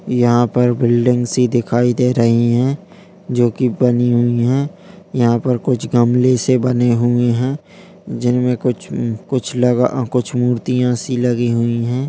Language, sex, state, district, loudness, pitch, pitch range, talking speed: Hindi, male, Bihar, Jamui, -16 LUFS, 125 Hz, 120-130 Hz, 165 wpm